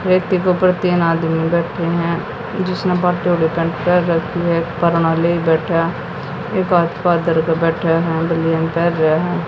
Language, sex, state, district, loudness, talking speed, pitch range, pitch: Hindi, female, Haryana, Jhajjar, -17 LUFS, 40 wpm, 165-175 Hz, 170 Hz